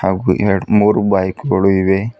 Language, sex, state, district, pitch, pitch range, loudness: Kannada, female, Karnataka, Bidar, 95 Hz, 95-105 Hz, -14 LUFS